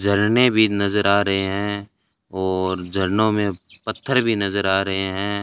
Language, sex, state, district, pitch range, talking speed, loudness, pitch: Hindi, male, Rajasthan, Bikaner, 95-105 Hz, 165 wpm, -20 LUFS, 100 Hz